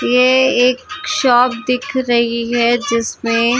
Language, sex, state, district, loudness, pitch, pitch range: Hindi, female, Maharashtra, Gondia, -15 LUFS, 245 Hz, 235-255 Hz